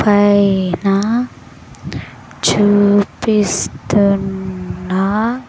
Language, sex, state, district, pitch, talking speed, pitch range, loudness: Telugu, female, Andhra Pradesh, Sri Satya Sai, 205 Hz, 35 wpm, 195-210 Hz, -15 LUFS